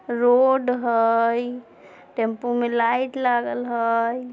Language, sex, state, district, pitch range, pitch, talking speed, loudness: Maithili, female, Bihar, Samastipur, 230-250 Hz, 240 Hz, 95 wpm, -21 LUFS